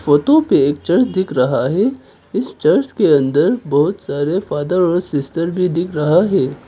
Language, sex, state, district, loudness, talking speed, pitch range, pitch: Hindi, male, Arunachal Pradesh, Papum Pare, -16 LUFS, 180 wpm, 145-185 Hz, 165 Hz